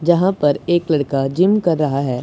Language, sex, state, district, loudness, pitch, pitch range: Hindi, male, Punjab, Pathankot, -17 LUFS, 155 Hz, 140-175 Hz